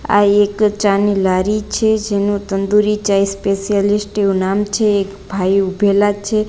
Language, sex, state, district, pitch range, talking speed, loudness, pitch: Gujarati, female, Gujarat, Gandhinagar, 195-210 Hz, 150 wpm, -15 LUFS, 205 Hz